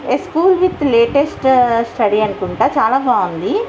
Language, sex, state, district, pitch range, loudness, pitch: Telugu, female, Andhra Pradesh, Visakhapatnam, 230-350 Hz, -14 LUFS, 265 Hz